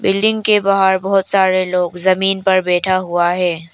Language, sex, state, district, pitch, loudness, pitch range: Hindi, female, Arunachal Pradesh, Papum Pare, 190 Hz, -15 LUFS, 180-195 Hz